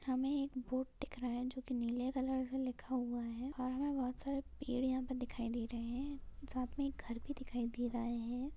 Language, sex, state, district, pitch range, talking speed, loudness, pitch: Hindi, female, Maharashtra, Sindhudurg, 245-265 Hz, 240 wpm, -41 LUFS, 255 Hz